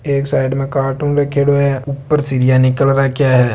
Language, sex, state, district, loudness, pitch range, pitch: Hindi, male, Rajasthan, Nagaur, -15 LUFS, 130-140 Hz, 135 Hz